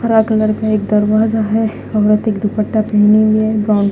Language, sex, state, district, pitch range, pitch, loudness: Hindi, female, Punjab, Fazilka, 210-220 Hz, 215 Hz, -14 LUFS